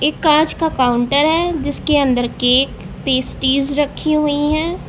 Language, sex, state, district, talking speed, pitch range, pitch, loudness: Hindi, female, Uttar Pradesh, Lucknow, 135 wpm, 265-305 Hz, 290 Hz, -16 LUFS